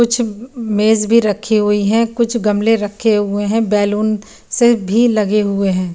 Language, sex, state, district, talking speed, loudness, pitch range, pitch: Hindi, female, Chandigarh, Chandigarh, 180 wpm, -15 LUFS, 205-230 Hz, 215 Hz